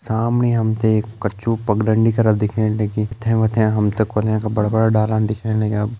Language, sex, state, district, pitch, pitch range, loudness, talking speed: Garhwali, male, Uttarakhand, Uttarkashi, 110 Hz, 105-110 Hz, -18 LUFS, 210 wpm